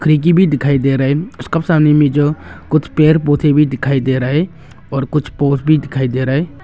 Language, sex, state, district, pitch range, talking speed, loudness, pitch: Hindi, male, Arunachal Pradesh, Longding, 135-155 Hz, 225 wpm, -14 LUFS, 145 Hz